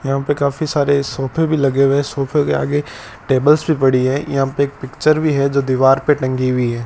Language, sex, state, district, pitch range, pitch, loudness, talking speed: Hindi, male, Rajasthan, Bikaner, 135-145 Hz, 140 Hz, -16 LUFS, 235 wpm